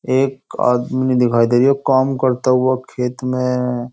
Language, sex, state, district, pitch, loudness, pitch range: Hindi, male, Uttar Pradesh, Jyotiba Phule Nagar, 130 Hz, -17 LUFS, 125-130 Hz